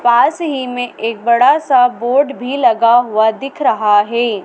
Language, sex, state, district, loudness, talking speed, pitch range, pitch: Hindi, female, Madhya Pradesh, Dhar, -13 LUFS, 175 wpm, 230-275 Hz, 245 Hz